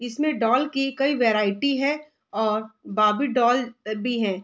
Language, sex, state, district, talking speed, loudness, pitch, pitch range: Hindi, female, Bihar, Saharsa, 150 wpm, -23 LUFS, 245 Hz, 215-275 Hz